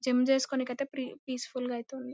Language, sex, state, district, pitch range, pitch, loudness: Telugu, female, Andhra Pradesh, Anantapur, 250-265 Hz, 255 Hz, -32 LUFS